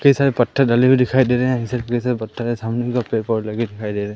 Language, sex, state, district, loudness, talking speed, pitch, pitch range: Hindi, male, Madhya Pradesh, Katni, -19 LUFS, 260 wpm, 120 Hz, 115-125 Hz